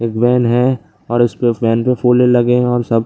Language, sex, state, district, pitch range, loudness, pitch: Hindi, male, Bihar, Lakhisarai, 115-125 Hz, -14 LUFS, 120 Hz